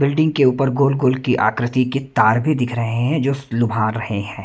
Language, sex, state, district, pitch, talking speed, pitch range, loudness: Hindi, male, Himachal Pradesh, Shimla, 125 Hz, 230 wpm, 115-135 Hz, -18 LUFS